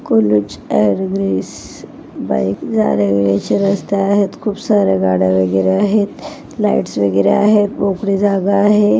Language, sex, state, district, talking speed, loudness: Marathi, female, Maharashtra, Pune, 115 wpm, -15 LUFS